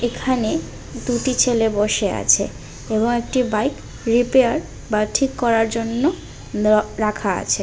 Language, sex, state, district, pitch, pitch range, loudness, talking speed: Bengali, female, Tripura, West Tripura, 230 Hz, 215-250 Hz, -20 LUFS, 125 wpm